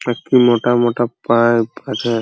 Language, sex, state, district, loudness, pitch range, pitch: Bengali, male, West Bengal, Purulia, -15 LUFS, 115-120 Hz, 120 Hz